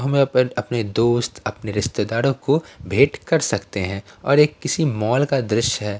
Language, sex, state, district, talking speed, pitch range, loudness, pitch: Hindi, male, Bihar, Patna, 170 wpm, 105-140 Hz, -20 LUFS, 120 Hz